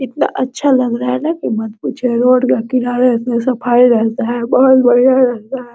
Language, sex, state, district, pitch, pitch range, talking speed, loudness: Hindi, female, Bihar, Araria, 250 Hz, 240-260 Hz, 210 wpm, -13 LUFS